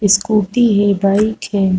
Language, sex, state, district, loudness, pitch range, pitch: Hindi, female, Chhattisgarh, Rajnandgaon, -14 LUFS, 200-215 Hz, 205 Hz